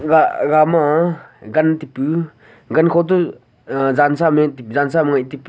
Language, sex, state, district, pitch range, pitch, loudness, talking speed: Wancho, male, Arunachal Pradesh, Longding, 140-160 Hz, 155 Hz, -16 LUFS, 165 wpm